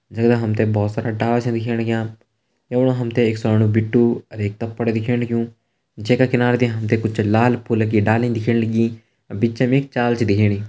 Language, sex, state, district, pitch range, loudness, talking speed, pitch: Hindi, male, Uttarakhand, Uttarkashi, 110-120 Hz, -19 LUFS, 225 wpm, 115 Hz